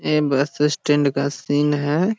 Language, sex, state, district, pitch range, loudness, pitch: Magahi, male, Bihar, Jahanabad, 140-150 Hz, -20 LUFS, 145 Hz